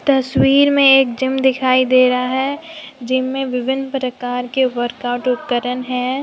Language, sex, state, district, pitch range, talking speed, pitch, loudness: Hindi, female, Jharkhand, Deoghar, 250-270 Hz, 165 wpm, 255 Hz, -16 LUFS